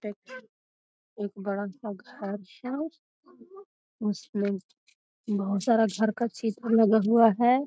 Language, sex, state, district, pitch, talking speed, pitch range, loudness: Magahi, female, Bihar, Gaya, 220 Hz, 115 wpm, 200-240 Hz, -27 LUFS